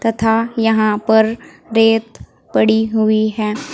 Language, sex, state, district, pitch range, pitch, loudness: Hindi, female, Uttar Pradesh, Saharanpur, 220-225 Hz, 220 Hz, -15 LUFS